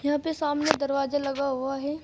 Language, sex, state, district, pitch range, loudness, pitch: Hindi, female, Uttar Pradesh, Shamli, 275-295 Hz, -27 LUFS, 285 Hz